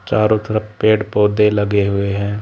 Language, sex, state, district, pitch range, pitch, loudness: Hindi, male, Haryana, Charkhi Dadri, 100-110 Hz, 105 Hz, -16 LUFS